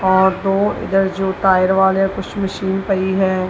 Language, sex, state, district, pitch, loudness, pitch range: Hindi, female, Punjab, Kapurthala, 190 Hz, -17 LUFS, 190-195 Hz